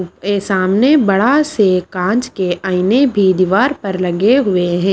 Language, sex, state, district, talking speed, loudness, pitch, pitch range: Hindi, female, Maharashtra, Washim, 160 wpm, -14 LUFS, 195 Hz, 185-235 Hz